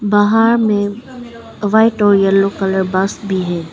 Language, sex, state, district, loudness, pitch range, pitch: Hindi, female, Arunachal Pradesh, Papum Pare, -14 LUFS, 195-225 Hz, 205 Hz